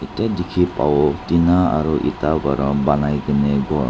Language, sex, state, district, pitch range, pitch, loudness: Nagamese, male, Nagaland, Dimapur, 70-80 Hz, 75 Hz, -18 LUFS